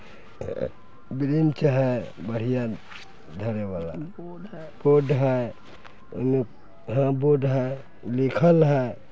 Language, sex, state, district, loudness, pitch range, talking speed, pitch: Hindi, male, Bihar, East Champaran, -24 LUFS, 120-150 Hz, 70 wpm, 135 Hz